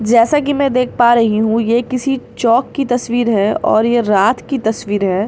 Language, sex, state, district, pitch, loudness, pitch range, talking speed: Hindi, female, Bihar, Katihar, 235 Hz, -14 LUFS, 220-255 Hz, 215 wpm